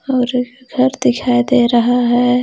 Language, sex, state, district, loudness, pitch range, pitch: Hindi, female, Jharkhand, Ranchi, -14 LUFS, 245-255 Hz, 245 Hz